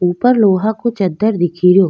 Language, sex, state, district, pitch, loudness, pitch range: Rajasthani, female, Rajasthan, Nagaur, 195 Hz, -14 LUFS, 180-220 Hz